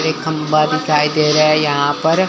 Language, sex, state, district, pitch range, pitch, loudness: Hindi, male, Chandigarh, Chandigarh, 150-155 Hz, 155 Hz, -15 LUFS